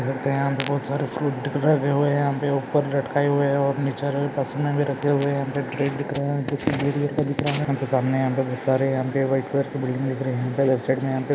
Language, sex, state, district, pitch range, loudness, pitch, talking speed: Hindi, male, Andhra Pradesh, Visakhapatnam, 135-145 Hz, -23 LUFS, 140 Hz, 55 wpm